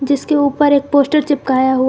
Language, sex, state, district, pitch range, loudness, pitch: Hindi, female, Jharkhand, Garhwa, 265-290 Hz, -14 LUFS, 285 Hz